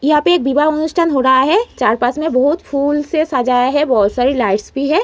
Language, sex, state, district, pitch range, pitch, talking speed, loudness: Hindi, female, Uttar Pradesh, Muzaffarnagar, 255-310 Hz, 280 Hz, 250 wpm, -14 LUFS